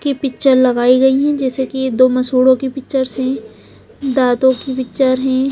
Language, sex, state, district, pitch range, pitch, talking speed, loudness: Hindi, female, Punjab, Fazilka, 255-265 Hz, 260 Hz, 185 wpm, -14 LUFS